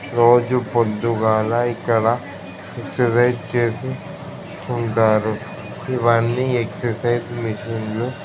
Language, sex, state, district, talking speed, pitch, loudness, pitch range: Telugu, male, Andhra Pradesh, Krishna, 75 wpm, 120 Hz, -20 LUFS, 110-120 Hz